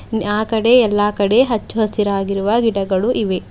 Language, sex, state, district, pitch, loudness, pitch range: Kannada, female, Karnataka, Bidar, 210 Hz, -16 LUFS, 200-225 Hz